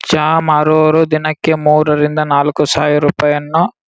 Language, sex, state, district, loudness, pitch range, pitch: Kannada, male, Karnataka, Gulbarga, -12 LUFS, 150-155 Hz, 155 Hz